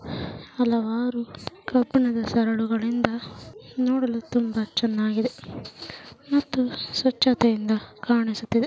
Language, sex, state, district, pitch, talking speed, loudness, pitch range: Kannada, female, Karnataka, Mysore, 235 Hz, 60 wpm, -24 LUFS, 225-255 Hz